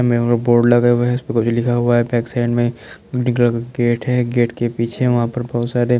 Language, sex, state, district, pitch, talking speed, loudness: Hindi, male, Chandigarh, Chandigarh, 120 Hz, 230 wpm, -17 LUFS